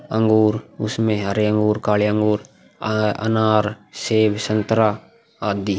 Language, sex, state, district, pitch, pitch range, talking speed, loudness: Hindi, male, Bihar, Vaishali, 105 Hz, 105-110 Hz, 115 wpm, -20 LUFS